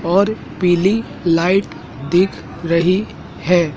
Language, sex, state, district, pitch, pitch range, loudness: Hindi, male, Madhya Pradesh, Dhar, 175 Hz, 165-190 Hz, -17 LUFS